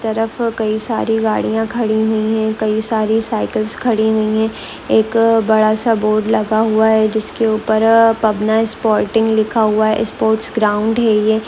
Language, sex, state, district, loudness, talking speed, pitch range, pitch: Hindi, female, West Bengal, Malda, -15 LUFS, 160 wpm, 215-225 Hz, 220 Hz